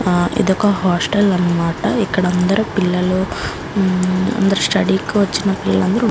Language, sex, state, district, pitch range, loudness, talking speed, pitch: Telugu, female, Andhra Pradesh, Guntur, 180-205 Hz, -16 LUFS, 135 wpm, 190 Hz